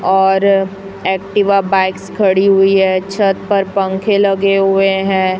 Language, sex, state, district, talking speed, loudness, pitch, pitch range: Hindi, female, Chhattisgarh, Raipur, 135 wpm, -13 LUFS, 195 Hz, 190-195 Hz